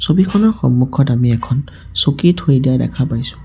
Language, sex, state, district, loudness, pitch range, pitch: Assamese, male, Assam, Sonitpur, -15 LUFS, 125-160 Hz, 135 Hz